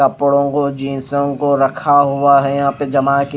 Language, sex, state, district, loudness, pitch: Hindi, male, Chhattisgarh, Raipur, -15 LUFS, 140 Hz